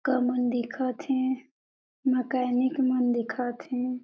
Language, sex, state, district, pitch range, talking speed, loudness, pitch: Chhattisgarhi, female, Chhattisgarh, Jashpur, 250-260 Hz, 120 wpm, -28 LUFS, 255 Hz